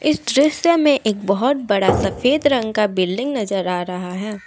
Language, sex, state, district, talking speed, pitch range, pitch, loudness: Hindi, female, Assam, Kamrup Metropolitan, 175 wpm, 195-280 Hz, 220 Hz, -18 LUFS